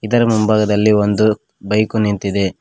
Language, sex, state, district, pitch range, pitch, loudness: Kannada, male, Karnataka, Koppal, 105-110 Hz, 105 Hz, -15 LUFS